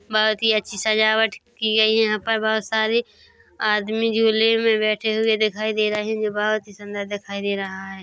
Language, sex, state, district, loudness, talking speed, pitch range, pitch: Hindi, female, Chhattisgarh, Korba, -21 LUFS, 200 wpm, 210-220 Hz, 215 Hz